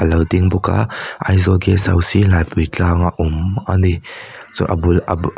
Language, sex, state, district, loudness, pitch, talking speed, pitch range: Mizo, male, Mizoram, Aizawl, -16 LUFS, 90 Hz, 190 wpm, 85-95 Hz